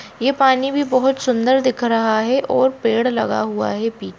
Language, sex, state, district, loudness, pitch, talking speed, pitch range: Hindi, female, Bihar, Jamui, -17 LUFS, 250 Hz, 200 wpm, 225-265 Hz